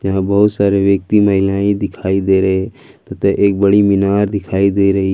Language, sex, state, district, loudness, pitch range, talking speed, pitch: Hindi, male, Jharkhand, Ranchi, -14 LUFS, 95-100 Hz, 165 wpm, 100 Hz